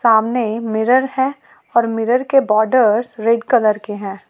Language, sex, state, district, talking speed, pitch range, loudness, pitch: Hindi, female, Jharkhand, Ranchi, 155 wpm, 220-255 Hz, -16 LUFS, 230 Hz